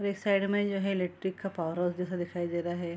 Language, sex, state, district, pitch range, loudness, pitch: Hindi, female, Bihar, Araria, 175-195 Hz, -31 LUFS, 185 Hz